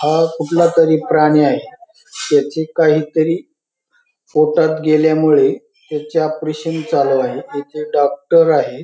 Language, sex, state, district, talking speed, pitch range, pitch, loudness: Marathi, male, Maharashtra, Pune, 115 wpm, 150-165 Hz, 155 Hz, -15 LUFS